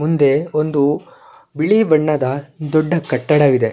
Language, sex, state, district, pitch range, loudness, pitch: Kannada, male, Karnataka, Shimoga, 140-160 Hz, -16 LUFS, 150 Hz